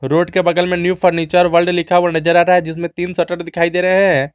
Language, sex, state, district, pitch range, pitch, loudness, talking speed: Hindi, male, Jharkhand, Garhwa, 170-180 Hz, 175 Hz, -14 LUFS, 275 wpm